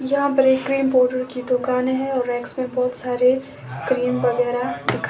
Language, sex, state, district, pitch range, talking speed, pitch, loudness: Hindi, female, Himachal Pradesh, Shimla, 250-260 Hz, 175 wpm, 255 Hz, -21 LUFS